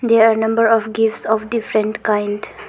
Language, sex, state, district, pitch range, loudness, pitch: English, female, Arunachal Pradesh, Longding, 215-225 Hz, -17 LUFS, 220 Hz